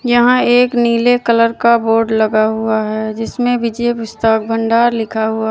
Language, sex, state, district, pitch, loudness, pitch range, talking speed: Hindi, female, Uttar Pradesh, Lalitpur, 230 Hz, -14 LUFS, 220-240 Hz, 165 wpm